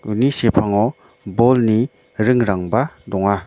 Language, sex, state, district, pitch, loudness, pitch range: Garo, male, Meghalaya, North Garo Hills, 110 Hz, -18 LUFS, 100-125 Hz